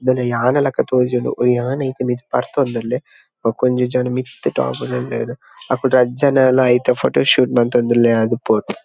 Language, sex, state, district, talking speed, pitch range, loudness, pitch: Tulu, male, Karnataka, Dakshina Kannada, 135 wpm, 120-130 Hz, -17 LUFS, 125 Hz